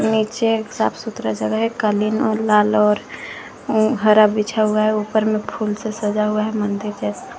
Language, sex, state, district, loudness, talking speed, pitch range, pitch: Hindi, female, Jharkhand, Garhwa, -19 LUFS, 180 wpm, 210-220 Hz, 215 Hz